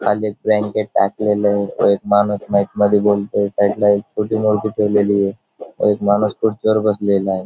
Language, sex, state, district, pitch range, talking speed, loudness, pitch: Marathi, male, Maharashtra, Dhule, 100-105 Hz, 160 wpm, -17 LUFS, 105 Hz